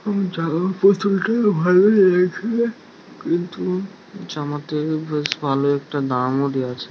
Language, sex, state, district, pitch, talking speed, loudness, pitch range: Bengali, male, West Bengal, Jhargram, 175 Hz, 120 wpm, -20 LUFS, 145-195 Hz